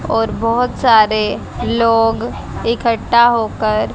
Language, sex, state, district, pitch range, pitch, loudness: Hindi, female, Haryana, Charkhi Dadri, 220-235 Hz, 230 Hz, -15 LUFS